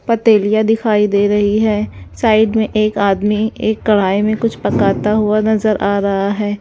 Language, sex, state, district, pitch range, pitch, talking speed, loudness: Hindi, female, Bihar, West Champaran, 200-220 Hz, 210 Hz, 170 wpm, -14 LUFS